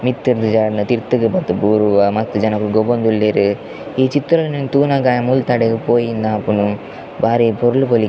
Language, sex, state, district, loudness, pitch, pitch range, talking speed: Tulu, male, Karnataka, Dakshina Kannada, -16 LUFS, 115 Hz, 110-125 Hz, 140 wpm